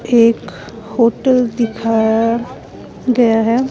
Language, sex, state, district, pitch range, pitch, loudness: Hindi, female, Himachal Pradesh, Shimla, 225-245 Hz, 230 Hz, -15 LUFS